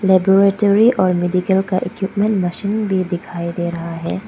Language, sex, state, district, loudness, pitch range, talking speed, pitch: Hindi, female, Arunachal Pradesh, Papum Pare, -17 LUFS, 175-200 Hz, 155 wpm, 185 Hz